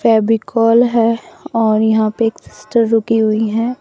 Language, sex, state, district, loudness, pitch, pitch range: Hindi, female, Assam, Sonitpur, -15 LUFS, 225 Hz, 220-230 Hz